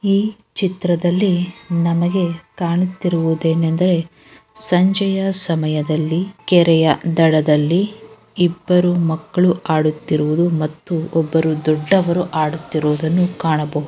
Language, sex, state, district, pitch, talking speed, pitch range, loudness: Kannada, female, Karnataka, Gulbarga, 170 Hz, 75 wpm, 160-180 Hz, -17 LUFS